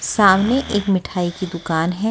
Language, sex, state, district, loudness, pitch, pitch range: Hindi, female, Delhi, New Delhi, -18 LUFS, 190 Hz, 175-205 Hz